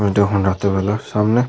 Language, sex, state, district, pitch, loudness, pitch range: Bengali, male, West Bengal, Malda, 100 Hz, -18 LUFS, 100-105 Hz